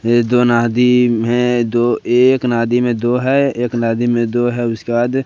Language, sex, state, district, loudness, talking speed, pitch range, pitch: Hindi, male, Bihar, West Champaran, -15 LUFS, 195 wpm, 120-125 Hz, 120 Hz